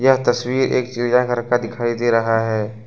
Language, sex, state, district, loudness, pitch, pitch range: Hindi, male, Jharkhand, Ranchi, -19 LUFS, 120 Hz, 115-125 Hz